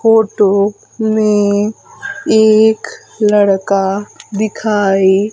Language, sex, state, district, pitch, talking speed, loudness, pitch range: Hindi, female, Madhya Pradesh, Umaria, 210 Hz, 55 wpm, -13 LUFS, 200-220 Hz